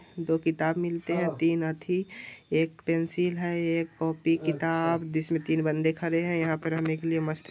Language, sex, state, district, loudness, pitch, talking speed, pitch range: Hindi, male, Bihar, Vaishali, -28 LUFS, 165 Hz, 190 wpm, 160-170 Hz